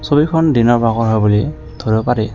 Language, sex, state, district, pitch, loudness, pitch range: Assamese, male, Assam, Kamrup Metropolitan, 115 Hz, -14 LUFS, 110-145 Hz